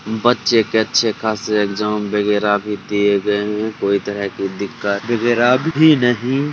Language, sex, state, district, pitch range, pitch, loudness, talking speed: Hindi, male, Bihar, Samastipur, 105-120 Hz, 105 Hz, -17 LUFS, 165 wpm